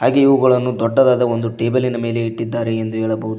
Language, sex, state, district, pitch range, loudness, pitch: Kannada, male, Karnataka, Koppal, 115-125 Hz, -17 LUFS, 115 Hz